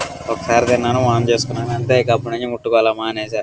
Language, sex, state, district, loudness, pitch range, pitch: Telugu, male, Andhra Pradesh, Guntur, -17 LUFS, 115-120 Hz, 120 Hz